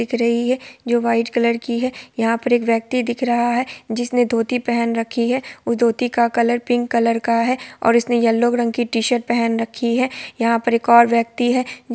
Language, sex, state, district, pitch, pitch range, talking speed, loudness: Hindi, female, Bihar, Sitamarhi, 235 Hz, 230-245 Hz, 215 wpm, -18 LUFS